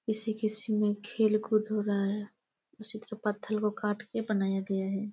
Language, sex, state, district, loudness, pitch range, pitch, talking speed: Hindi, female, Chhattisgarh, Raigarh, -30 LUFS, 205-220 Hz, 215 Hz, 185 wpm